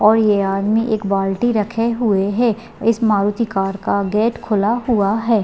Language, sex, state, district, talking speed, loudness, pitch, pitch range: Hindi, female, Bihar, Madhepura, 190 wpm, -17 LUFS, 215 Hz, 200-230 Hz